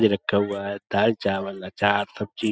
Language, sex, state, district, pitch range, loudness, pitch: Urdu, male, Uttar Pradesh, Budaun, 100-105 Hz, -24 LUFS, 100 Hz